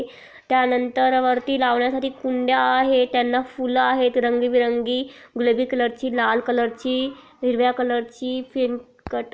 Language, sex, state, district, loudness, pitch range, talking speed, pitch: Marathi, female, Maharashtra, Aurangabad, -21 LUFS, 245-255 Hz, 120 wpm, 250 Hz